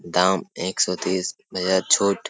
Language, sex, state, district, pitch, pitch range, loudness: Hindi, male, Bihar, Jamui, 95 Hz, 90-95 Hz, -22 LUFS